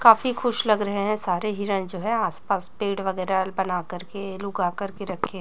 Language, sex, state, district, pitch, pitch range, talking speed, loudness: Hindi, female, Chhattisgarh, Raipur, 200 Hz, 185-210 Hz, 210 wpm, -25 LUFS